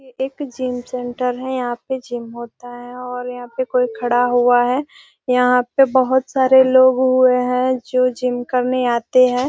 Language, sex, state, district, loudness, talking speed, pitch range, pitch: Hindi, female, Bihar, Gopalganj, -17 LUFS, 175 wpm, 245-260 Hz, 250 Hz